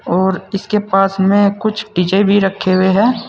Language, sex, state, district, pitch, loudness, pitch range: Hindi, male, Uttar Pradesh, Saharanpur, 195 Hz, -14 LUFS, 190-210 Hz